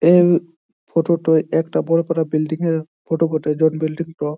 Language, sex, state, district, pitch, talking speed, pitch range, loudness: Bengali, male, West Bengal, Jhargram, 160 Hz, 150 wpm, 155-170 Hz, -19 LUFS